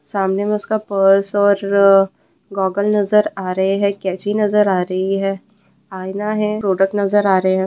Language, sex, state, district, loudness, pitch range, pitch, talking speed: Hindi, female, West Bengal, Purulia, -16 LUFS, 190-205 Hz, 195 Hz, 180 wpm